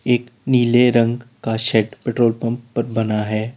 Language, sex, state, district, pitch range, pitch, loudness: Hindi, male, Uttar Pradesh, Lalitpur, 110-120 Hz, 120 Hz, -19 LUFS